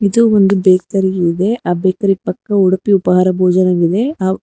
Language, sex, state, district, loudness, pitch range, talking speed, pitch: Kannada, female, Karnataka, Bangalore, -13 LUFS, 185-200 Hz, 150 wpm, 190 Hz